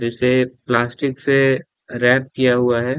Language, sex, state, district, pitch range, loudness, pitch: Hindi, male, Bihar, Saran, 120-135 Hz, -18 LUFS, 125 Hz